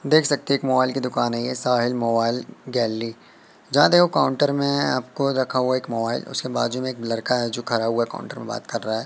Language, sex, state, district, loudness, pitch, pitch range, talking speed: Hindi, male, Madhya Pradesh, Katni, -22 LUFS, 125 Hz, 115-130 Hz, 240 wpm